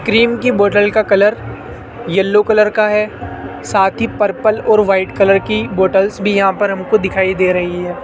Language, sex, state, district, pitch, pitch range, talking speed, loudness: Hindi, male, Rajasthan, Jaipur, 200 Hz, 185-215 Hz, 185 wpm, -13 LUFS